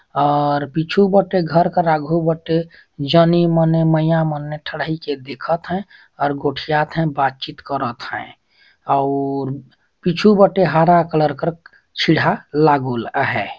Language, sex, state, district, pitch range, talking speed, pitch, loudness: Chhattisgarhi, male, Chhattisgarh, Jashpur, 145-170 Hz, 130 wpm, 160 Hz, -17 LUFS